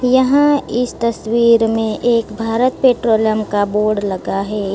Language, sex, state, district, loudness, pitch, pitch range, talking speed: Hindi, female, Gujarat, Valsad, -15 LUFS, 225 Hz, 215-245 Hz, 140 wpm